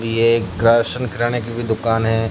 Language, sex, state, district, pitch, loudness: Hindi, male, Rajasthan, Jaisalmer, 115 Hz, -18 LUFS